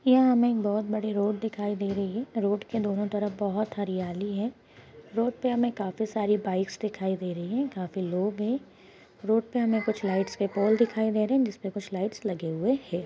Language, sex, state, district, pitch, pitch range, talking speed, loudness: Hindi, female, Bihar, Araria, 210 Hz, 195-225 Hz, 215 wpm, -28 LUFS